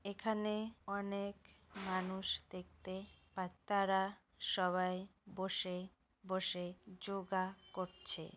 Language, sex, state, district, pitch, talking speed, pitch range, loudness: Bengali, female, West Bengal, North 24 Parganas, 190 Hz, 80 wpm, 185-200 Hz, -41 LUFS